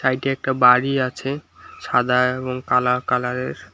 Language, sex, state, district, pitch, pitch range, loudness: Bengali, male, West Bengal, Alipurduar, 130 Hz, 125-135 Hz, -20 LUFS